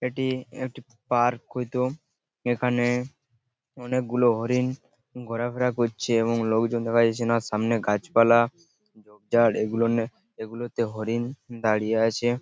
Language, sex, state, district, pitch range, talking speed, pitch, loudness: Bengali, male, West Bengal, Purulia, 115-125 Hz, 115 wpm, 120 Hz, -25 LUFS